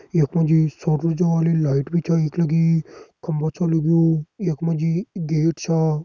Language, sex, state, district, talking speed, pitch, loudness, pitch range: Garhwali, male, Uttarakhand, Uttarkashi, 190 wpm, 165 Hz, -20 LUFS, 155-165 Hz